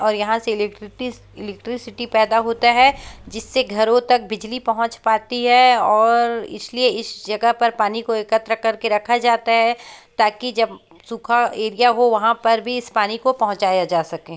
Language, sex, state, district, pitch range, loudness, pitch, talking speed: Hindi, female, Chhattisgarh, Bastar, 220-240 Hz, -18 LUFS, 230 Hz, 170 wpm